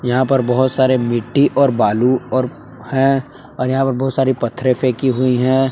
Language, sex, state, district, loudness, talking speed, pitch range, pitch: Hindi, male, Jharkhand, Palamu, -16 LUFS, 190 wpm, 125-135 Hz, 130 Hz